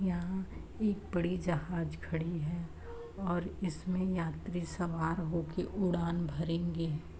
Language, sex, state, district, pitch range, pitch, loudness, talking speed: Hindi, female, Uttar Pradesh, Varanasi, 165-185 Hz, 175 Hz, -36 LUFS, 110 wpm